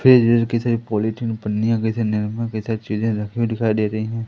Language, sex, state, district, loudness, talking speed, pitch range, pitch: Hindi, male, Madhya Pradesh, Katni, -20 LUFS, 225 wpm, 110-115 Hz, 110 Hz